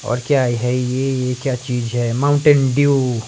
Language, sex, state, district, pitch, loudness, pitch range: Hindi, male, Himachal Pradesh, Shimla, 125 Hz, -17 LUFS, 125-140 Hz